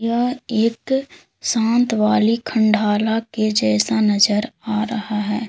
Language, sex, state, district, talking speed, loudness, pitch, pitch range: Hindi, female, Uttar Pradesh, Lalitpur, 120 wpm, -19 LUFS, 220 Hz, 215-230 Hz